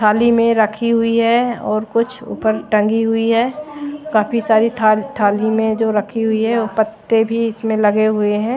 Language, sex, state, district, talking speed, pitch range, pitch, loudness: Hindi, female, Odisha, Malkangiri, 190 wpm, 215-230 Hz, 225 Hz, -16 LUFS